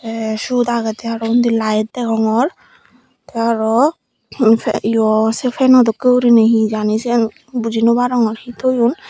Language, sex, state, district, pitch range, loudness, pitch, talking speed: Chakma, female, Tripura, Dhalai, 220-245 Hz, -15 LUFS, 230 Hz, 130 wpm